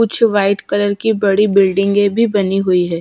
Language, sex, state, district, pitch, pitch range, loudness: Hindi, female, Bihar, Patna, 200 Hz, 195-210 Hz, -14 LUFS